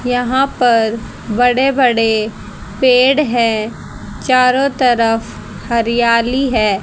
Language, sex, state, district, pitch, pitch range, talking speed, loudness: Hindi, female, Haryana, Rohtak, 240 Hz, 225-255 Hz, 90 wpm, -14 LUFS